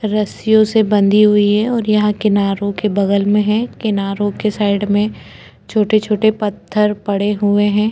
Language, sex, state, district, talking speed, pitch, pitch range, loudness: Hindi, female, Chhattisgarh, Korba, 160 wpm, 210 Hz, 205-215 Hz, -15 LUFS